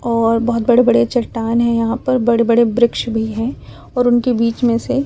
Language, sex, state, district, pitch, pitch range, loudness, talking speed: Hindi, female, Chhattisgarh, Raipur, 235 Hz, 230-245 Hz, -15 LUFS, 225 wpm